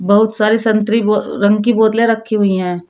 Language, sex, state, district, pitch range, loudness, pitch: Hindi, female, Uttar Pradesh, Shamli, 205-220 Hz, -14 LUFS, 215 Hz